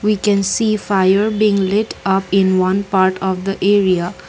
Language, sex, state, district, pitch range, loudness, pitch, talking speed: English, female, Assam, Kamrup Metropolitan, 190-205 Hz, -16 LUFS, 195 Hz, 180 wpm